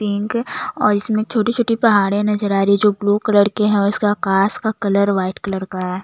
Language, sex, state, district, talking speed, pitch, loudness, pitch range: Hindi, female, Chhattisgarh, Jashpur, 250 wpm, 205 Hz, -17 LUFS, 200-215 Hz